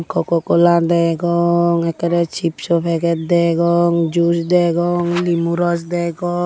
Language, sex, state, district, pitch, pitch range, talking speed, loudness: Chakma, female, Tripura, Unakoti, 170 Hz, 170-175 Hz, 110 wpm, -16 LUFS